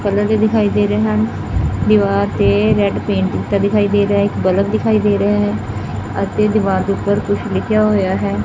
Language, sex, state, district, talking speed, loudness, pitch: Punjabi, female, Punjab, Fazilka, 190 wpm, -16 LUFS, 185 Hz